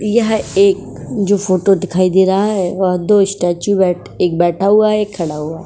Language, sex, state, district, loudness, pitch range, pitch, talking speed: Hindi, female, Uttar Pradesh, Etah, -14 LUFS, 180-205 Hz, 190 Hz, 225 wpm